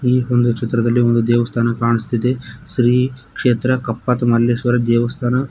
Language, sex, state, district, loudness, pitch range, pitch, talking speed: Kannada, male, Karnataka, Koppal, -17 LUFS, 115-125 Hz, 120 Hz, 120 wpm